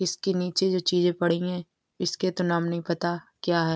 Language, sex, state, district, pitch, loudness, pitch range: Hindi, female, Bihar, East Champaran, 175 Hz, -26 LUFS, 170-180 Hz